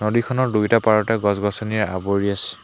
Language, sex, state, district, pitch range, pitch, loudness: Assamese, male, Assam, Hailakandi, 100-115 Hz, 105 Hz, -20 LUFS